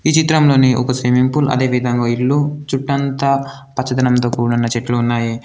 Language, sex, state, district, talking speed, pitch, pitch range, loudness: Telugu, male, Telangana, Komaram Bheem, 145 wpm, 130 Hz, 120-140 Hz, -16 LUFS